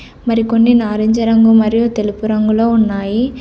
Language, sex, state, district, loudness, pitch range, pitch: Telugu, female, Telangana, Komaram Bheem, -13 LUFS, 215-230 Hz, 225 Hz